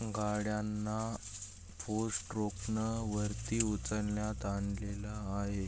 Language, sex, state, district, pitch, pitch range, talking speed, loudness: Marathi, male, Maharashtra, Aurangabad, 105 Hz, 100-110 Hz, 85 wpm, -37 LUFS